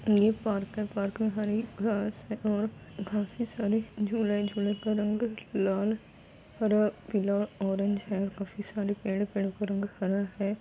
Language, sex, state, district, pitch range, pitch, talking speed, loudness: Hindi, female, Bihar, Gopalganj, 200-215 Hz, 205 Hz, 160 wpm, -31 LUFS